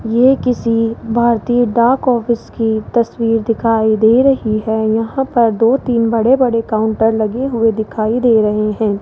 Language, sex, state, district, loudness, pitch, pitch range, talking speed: Hindi, male, Rajasthan, Jaipur, -14 LUFS, 230 Hz, 220-240 Hz, 155 wpm